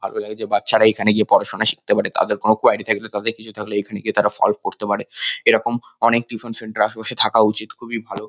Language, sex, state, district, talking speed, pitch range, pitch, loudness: Bengali, male, West Bengal, North 24 Parganas, 230 wpm, 105-115 Hz, 110 Hz, -18 LUFS